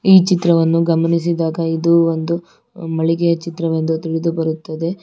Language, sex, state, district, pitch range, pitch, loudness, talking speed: Kannada, female, Karnataka, Bangalore, 165-170 Hz, 165 Hz, -17 LUFS, 105 wpm